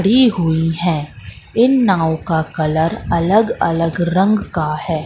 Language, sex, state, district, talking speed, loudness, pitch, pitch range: Hindi, female, Madhya Pradesh, Katni, 130 wpm, -16 LUFS, 165 Hz, 160-195 Hz